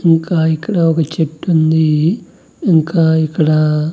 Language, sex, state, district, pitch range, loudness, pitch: Telugu, male, Andhra Pradesh, Annamaya, 155-165 Hz, -14 LUFS, 160 Hz